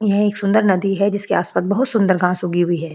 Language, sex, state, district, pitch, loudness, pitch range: Hindi, female, Goa, North and South Goa, 200 Hz, -18 LUFS, 180-205 Hz